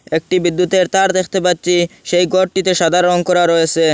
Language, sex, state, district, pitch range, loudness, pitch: Bengali, male, Assam, Hailakandi, 175-185 Hz, -14 LUFS, 180 Hz